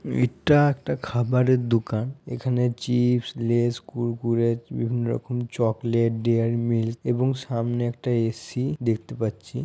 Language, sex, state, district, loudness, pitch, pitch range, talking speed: Bengali, male, West Bengal, Purulia, -24 LUFS, 120 Hz, 115-125 Hz, 120 wpm